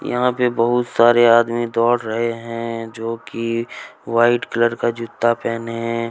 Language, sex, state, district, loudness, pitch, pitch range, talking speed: Hindi, male, Jharkhand, Deoghar, -19 LUFS, 115 Hz, 115-120 Hz, 155 wpm